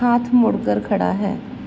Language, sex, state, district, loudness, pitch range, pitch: Hindi, female, Uttar Pradesh, Varanasi, -19 LUFS, 200-245 Hz, 235 Hz